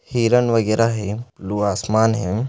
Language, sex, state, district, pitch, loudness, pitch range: Hindi, male, Chhattisgarh, Balrampur, 110 Hz, -19 LUFS, 105-115 Hz